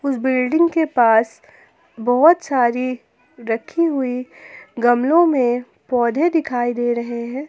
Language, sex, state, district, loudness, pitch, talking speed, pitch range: Hindi, female, Jharkhand, Ranchi, -18 LUFS, 255 Hz, 120 wpm, 240-305 Hz